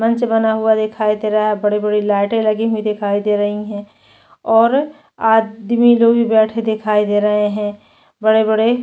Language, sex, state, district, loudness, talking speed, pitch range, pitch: Hindi, female, Chhattisgarh, Sukma, -15 LUFS, 175 wpm, 210-225 Hz, 215 Hz